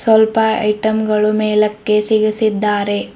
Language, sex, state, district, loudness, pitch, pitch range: Kannada, female, Karnataka, Bidar, -15 LUFS, 215 Hz, 210-220 Hz